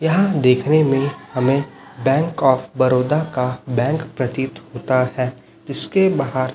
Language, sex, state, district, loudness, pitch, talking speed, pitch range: Hindi, male, Chhattisgarh, Raipur, -18 LUFS, 130 Hz, 135 wpm, 125-150 Hz